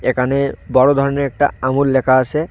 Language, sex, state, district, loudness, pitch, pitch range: Bengali, male, West Bengal, Cooch Behar, -15 LUFS, 140 Hz, 130-140 Hz